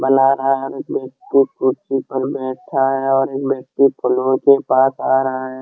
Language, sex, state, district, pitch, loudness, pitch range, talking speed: Hindi, male, Jharkhand, Deoghar, 135 Hz, -17 LUFS, 130-135 Hz, 140 wpm